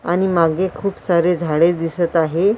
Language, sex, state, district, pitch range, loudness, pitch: Marathi, female, Maharashtra, Washim, 165-185 Hz, -17 LUFS, 170 Hz